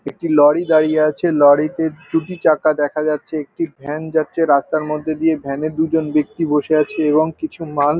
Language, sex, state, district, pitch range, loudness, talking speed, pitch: Bengali, male, West Bengal, North 24 Parganas, 150-160 Hz, -17 LUFS, 200 wpm, 155 Hz